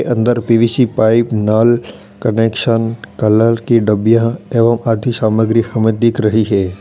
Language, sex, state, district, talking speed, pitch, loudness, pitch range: Hindi, male, Uttar Pradesh, Lalitpur, 130 wpm, 115 Hz, -13 LUFS, 110-115 Hz